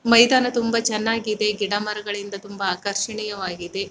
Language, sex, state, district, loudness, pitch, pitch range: Kannada, male, Karnataka, Mysore, -22 LUFS, 210 Hz, 200-230 Hz